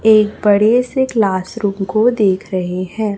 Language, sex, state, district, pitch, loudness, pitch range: Hindi, female, Chhattisgarh, Raipur, 210 Hz, -15 LUFS, 190-220 Hz